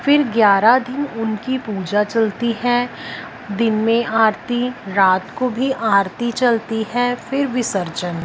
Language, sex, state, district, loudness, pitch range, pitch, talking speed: Hindi, female, Punjab, Fazilka, -18 LUFS, 210-245 Hz, 230 Hz, 130 wpm